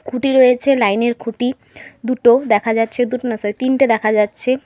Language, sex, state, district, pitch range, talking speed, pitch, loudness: Bengali, female, West Bengal, Alipurduar, 225-255 Hz, 170 wpm, 245 Hz, -16 LUFS